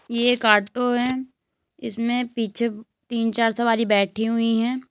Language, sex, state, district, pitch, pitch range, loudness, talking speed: Hindi, female, Uttar Pradesh, Lalitpur, 230 Hz, 225-245 Hz, -22 LUFS, 145 wpm